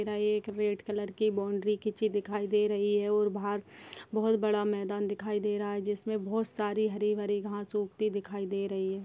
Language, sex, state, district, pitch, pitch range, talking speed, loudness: Hindi, female, Uttar Pradesh, Gorakhpur, 210 Hz, 205-210 Hz, 200 wpm, -32 LUFS